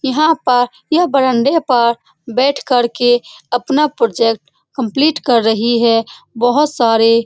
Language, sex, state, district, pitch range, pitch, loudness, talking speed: Hindi, female, Bihar, Saran, 235-275 Hz, 245 Hz, -14 LUFS, 140 wpm